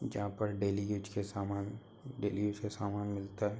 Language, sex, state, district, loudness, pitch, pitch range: Hindi, male, Uttar Pradesh, Hamirpur, -37 LUFS, 105 Hz, 100-105 Hz